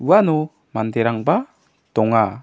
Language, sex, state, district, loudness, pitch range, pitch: Garo, male, Meghalaya, South Garo Hills, -19 LUFS, 110-155 Hz, 115 Hz